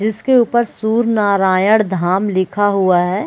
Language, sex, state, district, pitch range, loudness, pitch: Hindi, female, Bihar, Gaya, 185-220 Hz, -15 LUFS, 205 Hz